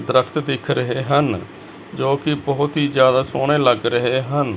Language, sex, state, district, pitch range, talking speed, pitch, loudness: Punjabi, male, Chandigarh, Chandigarh, 130-145 Hz, 170 wpm, 140 Hz, -18 LUFS